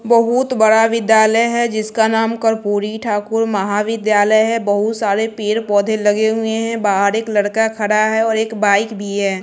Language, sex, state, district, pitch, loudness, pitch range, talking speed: Hindi, female, Bihar, West Champaran, 220 Hz, -15 LUFS, 205-225 Hz, 170 wpm